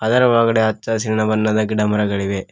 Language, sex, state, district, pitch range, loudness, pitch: Kannada, male, Karnataka, Koppal, 105-110 Hz, -17 LUFS, 110 Hz